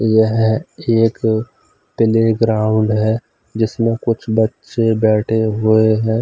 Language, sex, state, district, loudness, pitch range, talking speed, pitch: Hindi, male, Odisha, Khordha, -16 LUFS, 110-115 Hz, 105 wpm, 110 Hz